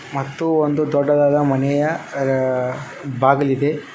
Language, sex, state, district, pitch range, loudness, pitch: Kannada, male, Karnataka, Koppal, 135-145 Hz, -18 LUFS, 140 Hz